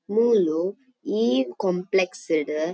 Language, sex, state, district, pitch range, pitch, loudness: Tulu, female, Karnataka, Dakshina Kannada, 170-235 Hz, 190 Hz, -24 LUFS